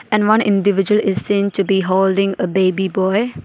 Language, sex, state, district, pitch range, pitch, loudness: English, female, Arunachal Pradesh, Papum Pare, 190-205 Hz, 195 Hz, -16 LUFS